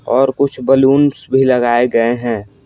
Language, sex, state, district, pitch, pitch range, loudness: Hindi, male, Bihar, Patna, 130 Hz, 120-135 Hz, -13 LUFS